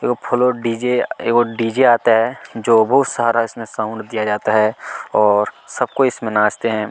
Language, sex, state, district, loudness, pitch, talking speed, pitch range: Hindi, male, Chhattisgarh, Kabirdham, -17 LUFS, 115 Hz, 190 wpm, 110-120 Hz